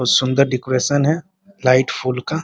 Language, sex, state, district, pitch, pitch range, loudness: Hindi, male, Bihar, Muzaffarpur, 135 Hz, 130-155 Hz, -18 LUFS